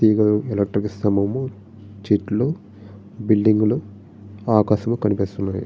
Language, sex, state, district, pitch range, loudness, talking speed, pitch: Telugu, male, Andhra Pradesh, Srikakulam, 100-110 Hz, -20 LUFS, 85 wpm, 105 Hz